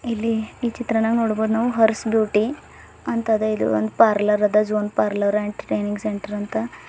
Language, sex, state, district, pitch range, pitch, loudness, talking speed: Kannada, female, Karnataka, Bidar, 210-225 Hz, 220 Hz, -21 LUFS, 155 wpm